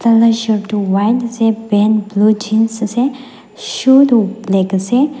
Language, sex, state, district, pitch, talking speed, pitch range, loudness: Nagamese, female, Nagaland, Dimapur, 220 Hz, 140 wpm, 205-235 Hz, -14 LUFS